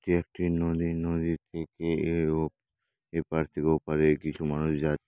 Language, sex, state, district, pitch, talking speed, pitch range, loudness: Bengali, male, West Bengal, Dakshin Dinajpur, 80 Hz, 140 wpm, 75-85 Hz, -29 LUFS